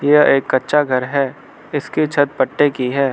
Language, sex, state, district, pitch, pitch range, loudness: Hindi, male, Arunachal Pradesh, Lower Dibang Valley, 140 Hz, 130-145 Hz, -17 LUFS